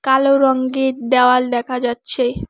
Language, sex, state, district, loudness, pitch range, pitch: Bengali, female, West Bengal, Alipurduar, -16 LUFS, 250-265 Hz, 255 Hz